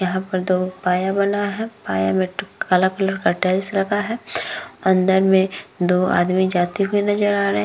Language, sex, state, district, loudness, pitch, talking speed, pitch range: Hindi, female, Bihar, Vaishali, -20 LUFS, 190 Hz, 190 wpm, 180-200 Hz